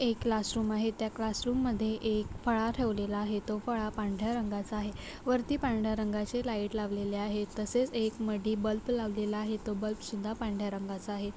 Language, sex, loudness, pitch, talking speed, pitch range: Marathi, female, -33 LUFS, 215 Hz, 180 wpm, 210-225 Hz